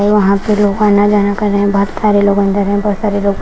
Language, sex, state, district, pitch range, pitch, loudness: Hindi, female, Punjab, Kapurthala, 200-210 Hz, 205 Hz, -12 LUFS